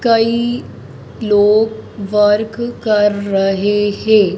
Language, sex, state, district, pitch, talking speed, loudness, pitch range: Hindi, female, Madhya Pradesh, Dhar, 205 Hz, 80 wpm, -15 LUFS, 200-220 Hz